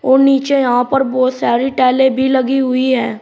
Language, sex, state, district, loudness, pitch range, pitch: Hindi, male, Uttar Pradesh, Shamli, -14 LUFS, 255-270 Hz, 260 Hz